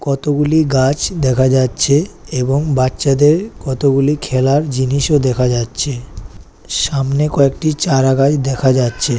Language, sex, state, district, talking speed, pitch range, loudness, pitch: Bengali, female, West Bengal, Kolkata, 110 wpm, 130-150 Hz, -15 LUFS, 140 Hz